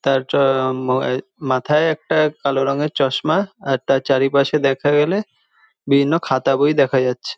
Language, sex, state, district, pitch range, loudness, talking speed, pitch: Bengali, male, West Bengal, Jhargram, 135-150 Hz, -18 LUFS, 130 wpm, 140 Hz